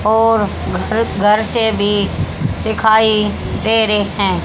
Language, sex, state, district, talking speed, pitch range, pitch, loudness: Hindi, female, Haryana, Rohtak, 120 wpm, 205-220 Hz, 215 Hz, -15 LUFS